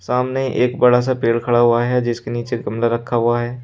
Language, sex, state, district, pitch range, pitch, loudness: Hindi, male, Uttar Pradesh, Shamli, 120-125 Hz, 120 Hz, -18 LUFS